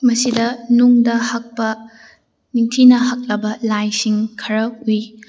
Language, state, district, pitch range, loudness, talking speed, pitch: Manipuri, Manipur, Imphal West, 220-240 Hz, -16 LUFS, 90 wpm, 230 Hz